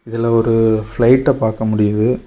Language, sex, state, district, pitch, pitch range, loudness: Tamil, male, Tamil Nadu, Kanyakumari, 115 Hz, 110-115 Hz, -15 LUFS